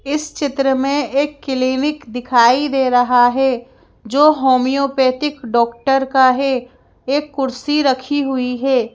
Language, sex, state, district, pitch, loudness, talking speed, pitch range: Hindi, female, Madhya Pradesh, Bhopal, 265 Hz, -16 LUFS, 125 wpm, 250-280 Hz